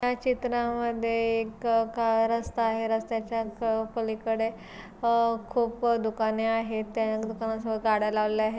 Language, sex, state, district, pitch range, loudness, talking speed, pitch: Marathi, female, Maharashtra, Pune, 220-230 Hz, -28 LUFS, 135 wpm, 225 Hz